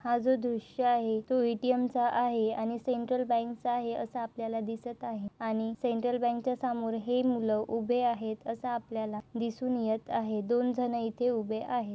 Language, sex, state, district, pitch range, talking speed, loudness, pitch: Marathi, female, Maharashtra, Nagpur, 225-245 Hz, 170 wpm, -31 LUFS, 235 Hz